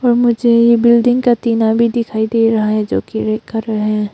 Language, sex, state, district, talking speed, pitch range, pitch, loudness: Hindi, female, Arunachal Pradesh, Longding, 230 wpm, 220-235 Hz, 230 Hz, -14 LUFS